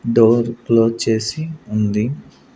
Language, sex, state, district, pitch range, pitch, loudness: Telugu, male, Andhra Pradesh, Sri Satya Sai, 110-120 Hz, 115 Hz, -18 LUFS